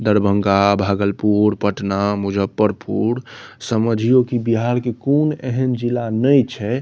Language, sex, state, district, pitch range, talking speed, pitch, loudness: Maithili, male, Bihar, Saharsa, 100-125 Hz, 125 wpm, 110 Hz, -18 LUFS